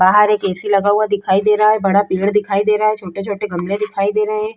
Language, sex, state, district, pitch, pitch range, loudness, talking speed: Hindi, female, Goa, North and South Goa, 205 Hz, 195-210 Hz, -16 LUFS, 275 wpm